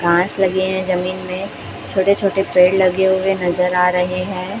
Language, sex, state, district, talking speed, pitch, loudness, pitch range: Hindi, female, Chhattisgarh, Raipur, 180 wpm, 185 Hz, -17 LUFS, 180-190 Hz